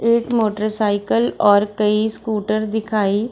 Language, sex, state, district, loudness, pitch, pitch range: Hindi, female, Bihar, Samastipur, -18 LUFS, 215 Hz, 205-220 Hz